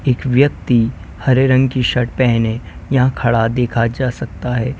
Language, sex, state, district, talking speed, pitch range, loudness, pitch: Hindi, male, Uttar Pradesh, Lalitpur, 160 wpm, 115-130 Hz, -16 LUFS, 125 Hz